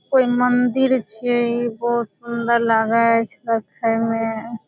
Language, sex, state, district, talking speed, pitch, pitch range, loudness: Maithili, female, Bihar, Supaul, 130 wpm, 235 Hz, 225-245 Hz, -19 LUFS